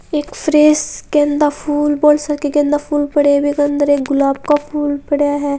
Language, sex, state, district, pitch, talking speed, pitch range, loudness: Hindi, female, Rajasthan, Churu, 290 Hz, 195 wpm, 290-295 Hz, -15 LUFS